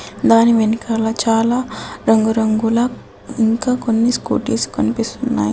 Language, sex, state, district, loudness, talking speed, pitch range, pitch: Telugu, female, Telangana, Adilabad, -16 LUFS, 95 wpm, 225-240 Hz, 225 Hz